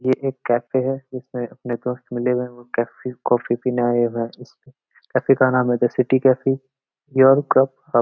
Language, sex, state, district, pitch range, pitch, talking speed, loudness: Marwari, male, Rajasthan, Nagaur, 120-130 Hz, 125 Hz, 180 wpm, -20 LUFS